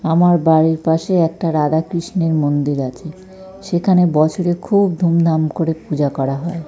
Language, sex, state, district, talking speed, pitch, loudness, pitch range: Bengali, male, West Bengal, North 24 Parganas, 145 wpm, 165 Hz, -16 LUFS, 155-175 Hz